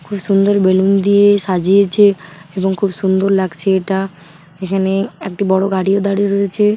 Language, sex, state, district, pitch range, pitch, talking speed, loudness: Bengali, female, West Bengal, Paschim Medinipur, 190-200 Hz, 195 Hz, 150 wpm, -14 LUFS